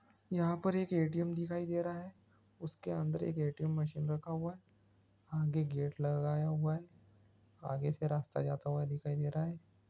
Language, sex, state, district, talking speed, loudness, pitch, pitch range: Hindi, male, Andhra Pradesh, Srikakulam, 195 wpm, -37 LUFS, 150 Hz, 140-165 Hz